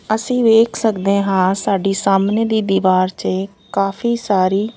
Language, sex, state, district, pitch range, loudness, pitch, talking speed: Punjabi, female, Punjab, Fazilka, 195-220 Hz, -16 LUFS, 200 Hz, 140 wpm